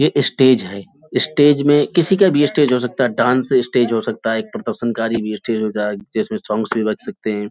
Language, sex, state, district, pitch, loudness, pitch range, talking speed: Hindi, male, Uttar Pradesh, Hamirpur, 115 Hz, -17 LUFS, 110-135 Hz, 255 wpm